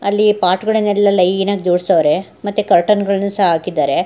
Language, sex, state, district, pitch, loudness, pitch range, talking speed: Kannada, female, Karnataka, Mysore, 200 Hz, -14 LUFS, 185-205 Hz, 160 wpm